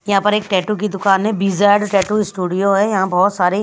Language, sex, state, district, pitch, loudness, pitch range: Hindi, female, Bihar, Patna, 200 Hz, -16 LUFS, 190-210 Hz